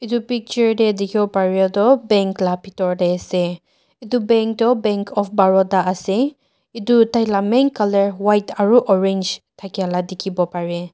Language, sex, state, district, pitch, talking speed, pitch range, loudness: Nagamese, female, Nagaland, Dimapur, 200 Hz, 175 wpm, 185-230 Hz, -18 LUFS